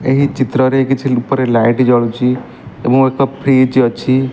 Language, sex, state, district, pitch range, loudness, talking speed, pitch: Odia, male, Odisha, Malkangiri, 125-135 Hz, -13 LUFS, 140 wpm, 130 Hz